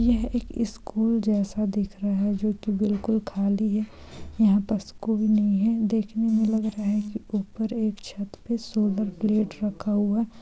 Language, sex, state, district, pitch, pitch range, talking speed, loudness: Hindi, female, Bihar, Saran, 215 Hz, 205-220 Hz, 185 wpm, -25 LUFS